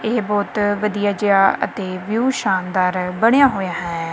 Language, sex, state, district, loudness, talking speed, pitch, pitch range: Punjabi, female, Punjab, Kapurthala, -18 LUFS, 145 wpm, 205 Hz, 185-210 Hz